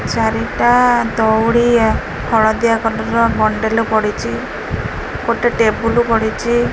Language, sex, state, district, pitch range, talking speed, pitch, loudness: Odia, female, Odisha, Khordha, 220-235 Hz, 100 wpm, 225 Hz, -15 LUFS